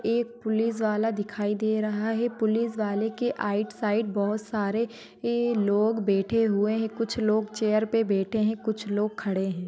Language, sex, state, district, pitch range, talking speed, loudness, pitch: Hindi, female, Maharashtra, Nagpur, 210-225 Hz, 175 wpm, -27 LUFS, 215 Hz